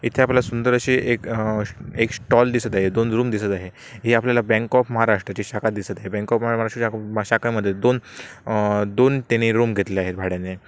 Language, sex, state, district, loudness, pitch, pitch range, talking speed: Marathi, male, Maharashtra, Sindhudurg, -21 LUFS, 115 Hz, 105-120 Hz, 200 wpm